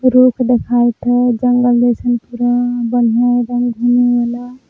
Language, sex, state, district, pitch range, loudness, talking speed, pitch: Magahi, female, Jharkhand, Palamu, 240-245 Hz, -14 LUFS, 130 wpm, 245 Hz